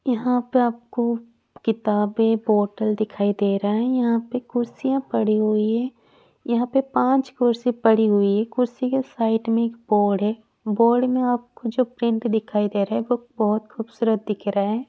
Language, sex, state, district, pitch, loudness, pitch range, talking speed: Hindi, female, Rajasthan, Churu, 230 Hz, -22 LUFS, 215-245 Hz, 175 wpm